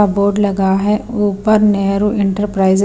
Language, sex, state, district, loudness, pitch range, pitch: Hindi, female, Himachal Pradesh, Shimla, -14 LUFS, 195-210 Hz, 200 Hz